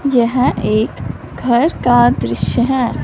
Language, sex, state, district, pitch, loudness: Hindi, female, Punjab, Fazilka, 240 Hz, -15 LUFS